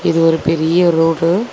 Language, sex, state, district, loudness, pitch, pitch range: Tamil, female, Tamil Nadu, Chennai, -14 LUFS, 165 Hz, 165-175 Hz